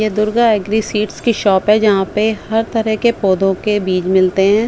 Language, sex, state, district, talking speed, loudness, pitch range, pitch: Hindi, female, Chandigarh, Chandigarh, 220 wpm, -15 LUFS, 195-220 Hz, 210 Hz